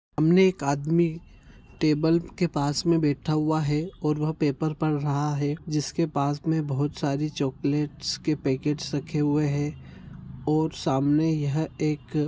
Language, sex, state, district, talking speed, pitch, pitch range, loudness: Hindi, male, Karnataka, Gulbarga, 145 wpm, 150 Hz, 145-160 Hz, -26 LUFS